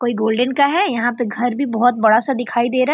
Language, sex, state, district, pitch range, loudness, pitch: Hindi, female, Bihar, Gopalganj, 235-260 Hz, -17 LUFS, 245 Hz